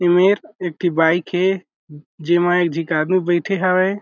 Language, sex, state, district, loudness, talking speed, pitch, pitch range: Chhattisgarhi, male, Chhattisgarh, Jashpur, -18 LUFS, 165 wpm, 175 Hz, 165-185 Hz